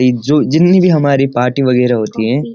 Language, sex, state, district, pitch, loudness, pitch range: Hindi, male, Uttarakhand, Uttarkashi, 125 Hz, -12 LUFS, 120-150 Hz